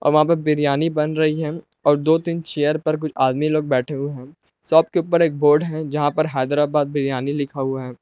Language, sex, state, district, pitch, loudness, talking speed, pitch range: Hindi, male, Jharkhand, Palamu, 150 Hz, -20 LUFS, 225 wpm, 145-155 Hz